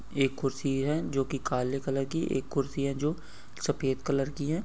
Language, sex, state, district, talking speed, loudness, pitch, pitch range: Hindi, male, Maharashtra, Nagpur, 205 wpm, -31 LUFS, 140 Hz, 135-145 Hz